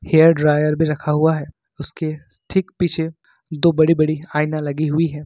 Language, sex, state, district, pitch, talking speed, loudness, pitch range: Hindi, male, Jharkhand, Ranchi, 155 Hz, 180 wpm, -18 LUFS, 150-160 Hz